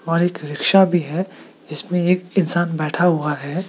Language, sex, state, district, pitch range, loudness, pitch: Hindi, male, Meghalaya, West Garo Hills, 155-180 Hz, -18 LUFS, 175 Hz